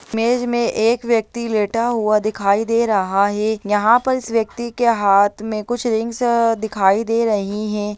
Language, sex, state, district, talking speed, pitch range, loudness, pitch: Hindi, female, Bihar, Jahanabad, 175 wpm, 210-235 Hz, -18 LUFS, 220 Hz